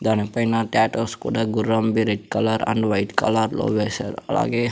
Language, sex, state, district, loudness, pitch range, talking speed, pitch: Telugu, female, Andhra Pradesh, Sri Satya Sai, -22 LUFS, 110-115 Hz, 150 wpm, 110 Hz